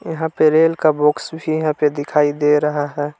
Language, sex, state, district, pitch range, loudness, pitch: Hindi, male, Jharkhand, Palamu, 150-155 Hz, -17 LUFS, 150 Hz